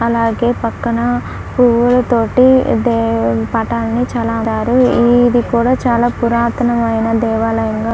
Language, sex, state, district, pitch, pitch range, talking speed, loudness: Telugu, female, Andhra Pradesh, Krishna, 235 Hz, 225-245 Hz, 90 wpm, -14 LUFS